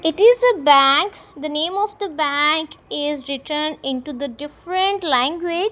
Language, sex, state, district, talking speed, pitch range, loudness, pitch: English, female, Punjab, Kapurthala, 155 wpm, 285-375 Hz, -19 LUFS, 305 Hz